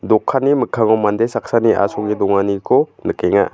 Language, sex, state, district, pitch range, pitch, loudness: Garo, male, Meghalaya, West Garo Hills, 100-115 Hz, 110 Hz, -16 LUFS